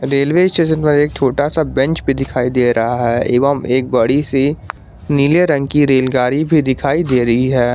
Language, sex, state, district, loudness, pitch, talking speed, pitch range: Hindi, male, Jharkhand, Garhwa, -14 LUFS, 135 Hz, 195 wpm, 125-150 Hz